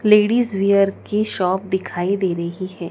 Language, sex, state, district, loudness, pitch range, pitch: Hindi, female, Madhya Pradesh, Dhar, -19 LUFS, 185-210 Hz, 195 Hz